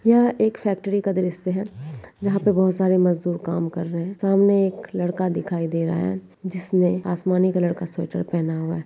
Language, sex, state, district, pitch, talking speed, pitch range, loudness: Hindi, female, Uttarakhand, Tehri Garhwal, 180 Hz, 205 wpm, 170-195 Hz, -22 LUFS